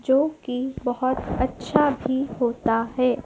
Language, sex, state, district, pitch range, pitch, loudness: Hindi, female, Madhya Pradesh, Dhar, 245-270 Hz, 255 Hz, -24 LUFS